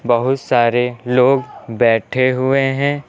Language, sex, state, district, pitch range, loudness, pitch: Hindi, male, Uttar Pradesh, Lucknow, 120-135 Hz, -16 LUFS, 125 Hz